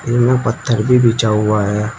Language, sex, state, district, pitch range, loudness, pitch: Hindi, male, Uttar Pradesh, Shamli, 105-120 Hz, -14 LUFS, 115 Hz